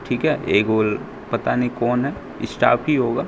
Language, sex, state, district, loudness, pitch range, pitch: Hindi, male, Bihar, Katihar, -20 LUFS, 110-125 Hz, 120 Hz